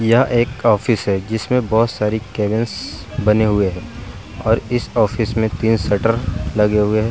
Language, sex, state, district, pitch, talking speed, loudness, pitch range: Hindi, male, Bihar, Vaishali, 110 Hz, 170 wpm, -18 LUFS, 105-115 Hz